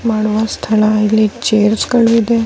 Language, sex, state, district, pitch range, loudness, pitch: Kannada, female, Karnataka, Dharwad, 215-230 Hz, -13 LUFS, 220 Hz